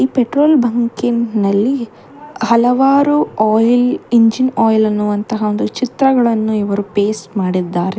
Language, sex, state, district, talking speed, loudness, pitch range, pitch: Kannada, female, Karnataka, Bangalore, 85 wpm, -14 LUFS, 210-250 Hz, 230 Hz